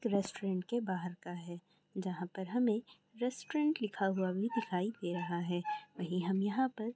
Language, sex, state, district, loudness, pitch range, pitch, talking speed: Hindi, female, Jharkhand, Sahebganj, -37 LUFS, 180-230 Hz, 195 Hz, 170 wpm